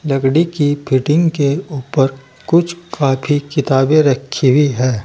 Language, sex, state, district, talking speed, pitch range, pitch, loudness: Hindi, male, Uttar Pradesh, Saharanpur, 130 wpm, 135-155 Hz, 140 Hz, -15 LUFS